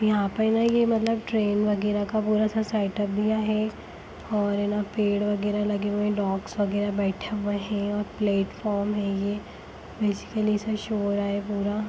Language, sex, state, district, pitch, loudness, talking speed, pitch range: Hindi, female, Chhattisgarh, Sarguja, 210 Hz, -26 LUFS, 155 wpm, 205-215 Hz